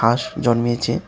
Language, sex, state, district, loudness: Bengali, male, Tripura, West Tripura, -20 LUFS